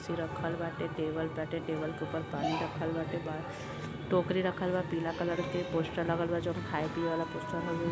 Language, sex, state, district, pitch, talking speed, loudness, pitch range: Bhojpuri, male, Uttar Pradesh, Deoria, 165 Hz, 195 wpm, -34 LUFS, 160-170 Hz